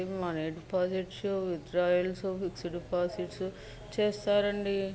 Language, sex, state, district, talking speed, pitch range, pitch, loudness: Telugu, female, Andhra Pradesh, Guntur, 60 wpm, 180-195 Hz, 185 Hz, -32 LUFS